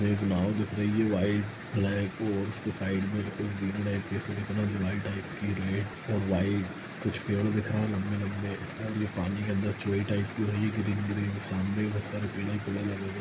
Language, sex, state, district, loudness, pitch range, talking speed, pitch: Hindi, male, Bihar, Lakhisarai, -31 LUFS, 100-105 Hz, 175 wpm, 100 Hz